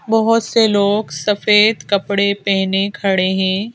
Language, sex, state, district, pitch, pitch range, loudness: Hindi, female, Madhya Pradesh, Bhopal, 200 Hz, 195-215 Hz, -15 LUFS